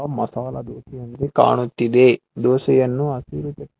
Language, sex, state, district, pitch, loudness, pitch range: Kannada, male, Karnataka, Bangalore, 125 Hz, -19 LUFS, 120-135 Hz